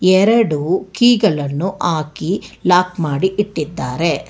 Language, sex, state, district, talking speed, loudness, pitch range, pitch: Kannada, female, Karnataka, Bangalore, 95 wpm, -16 LUFS, 155-190 Hz, 180 Hz